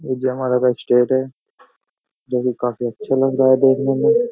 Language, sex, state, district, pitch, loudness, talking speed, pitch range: Hindi, male, Uttar Pradesh, Jyotiba Phule Nagar, 130 Hz, -18 LUFS, 180 wpm, 125-135 Hz